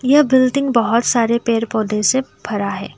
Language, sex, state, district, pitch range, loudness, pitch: Hindi, female, Assam, Kamrup Metropolitan, 215-260 Hz, -16 LUFS, 235 Hz